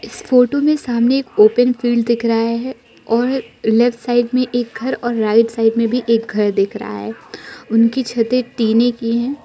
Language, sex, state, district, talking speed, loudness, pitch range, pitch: Hindi, female, Arunachal Pradesh, Lower Dibang Valley, 195 wpm, -16 LUFS, 225-245 Hz, 235 Hz